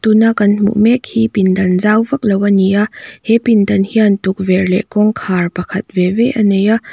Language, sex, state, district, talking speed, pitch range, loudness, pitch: Mizo, female, Mizoram, Aizawl, 180 wpm, 190-220 Hz, -13 LUFS, 205 Hz